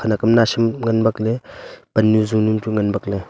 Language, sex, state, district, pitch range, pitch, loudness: Wancho, male, Arunachal Pradesh, Longding, 110-115 Hz, 110 Hz, -18 LUFS